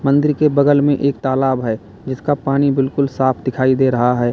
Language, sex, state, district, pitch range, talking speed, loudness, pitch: Hindi, male, Uttar Pradesh, Lalitpur, 130-140 Hz, 205 wpm, -16 LUFS, 135 Hz